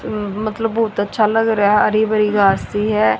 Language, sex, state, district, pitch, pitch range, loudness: Hindi, female, Haryana, Rohtak, 210 Hz, 205-215 Hz, -16 LUFS